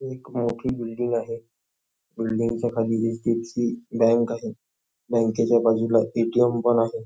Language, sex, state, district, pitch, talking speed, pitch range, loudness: Marathi, male, Maharashtra, Nagpur, 115 Hz, 120 wpm, 115-120 Hz, -23 LUFS